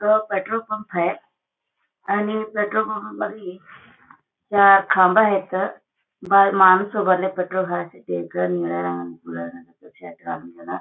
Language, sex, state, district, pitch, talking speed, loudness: Marathi, female, Maharashtra, Solapur, 190 Hz, 95 wpm, -20 LUFS